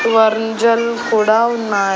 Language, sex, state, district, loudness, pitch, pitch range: Telugu, female, Andhra Pradesh, Annamaya, -15 LUFS, 225 Hz, 220-230 Hz